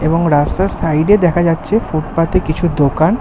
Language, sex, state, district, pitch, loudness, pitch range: Bengali, male, West Bengal, Kolkata, 165 Hz, -14 LUFS, 155-175 Hz